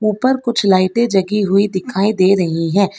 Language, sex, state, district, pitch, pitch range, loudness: Hindi, female, Karnataka, Bangalore, 200 Hz, 185-215 Hz, -15 LUFS